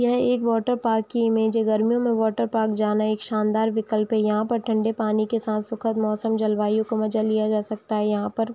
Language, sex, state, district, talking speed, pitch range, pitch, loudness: Hindi, female, Chhattisgarh, Raigarh, 240 wpm, 215-225 Hz, 220 Hz, -23 LUFS